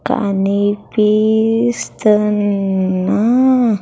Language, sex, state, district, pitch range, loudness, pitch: Telugu, female, Andhra Pradesh, Sri Satya Sai, 200-220 Hz, -15 LUFS, 210 Hz